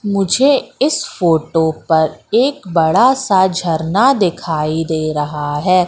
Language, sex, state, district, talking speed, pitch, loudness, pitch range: Hindi, female, Madhya Pradesh, Katni, 120 wpm, 175 Hz, -15 LUFS, 160-210 Hz